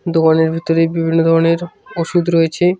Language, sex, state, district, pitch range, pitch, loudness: Bengali, male, West Bengal, Cooch Behar, 165-170 Hz, 165 Hz, -15 LUFS